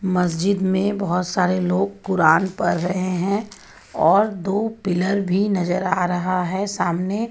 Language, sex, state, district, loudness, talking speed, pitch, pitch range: Hindi, female, Jharkhand, Ranchi, -20 LUFS, 150 wpm, 190 Hz, 180-200 Hz